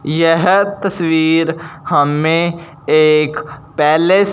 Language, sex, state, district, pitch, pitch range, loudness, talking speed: Hindi, male, Punjab, Fazilka, 160 Hz, 155-170 Hz, -14 LUFS, 85 wpm